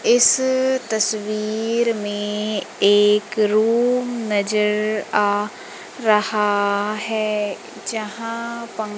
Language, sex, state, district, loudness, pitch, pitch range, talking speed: Hindi, female, Madhya Pradesh, Umaria, -20 LUFS, 215 Hz, 210-230 Hz, 75 wpm